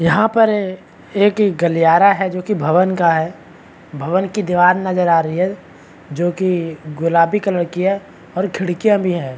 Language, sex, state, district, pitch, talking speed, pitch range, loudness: Hindi, male, Chhattisgarh, Bastar, 180 Hz, 175 wpm, 165-195 Hz, -16 LUFS